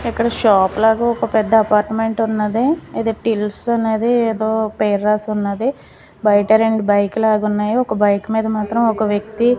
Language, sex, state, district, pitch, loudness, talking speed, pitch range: Telugu, female, Andhra Pradesh, Manyam, 220 Hz, -17 LUFS, 145 wpm, 210-230 Hz